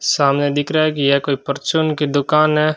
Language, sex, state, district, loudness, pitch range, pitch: Hindi, male, Rajasthan, Bikaner, -17 LUFS, 140-155 Hz, 145 Hz